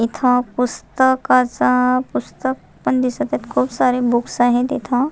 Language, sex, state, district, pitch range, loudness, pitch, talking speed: Marathi, female, Maharashtra, Nagpur, 230-255 Hz, -18 LUFS, 250 Hz, 115 wpm